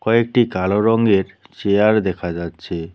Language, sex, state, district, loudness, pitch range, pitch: Bengali, male, West Bengal, Cooch Behar, -18 LUFS, 85-110 Hz, 100 Hz